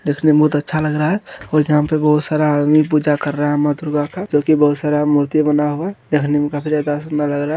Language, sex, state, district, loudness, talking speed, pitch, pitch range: Hindi, male, Bihar, Supaul, -16 LUFS, 285 wpm, 150 Hz, 145-155 Hz